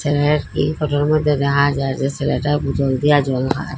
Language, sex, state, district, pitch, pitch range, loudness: Bengali, female, Assam, Hailakandi, 145 Hz, 135-145 Hz, -18 LUFS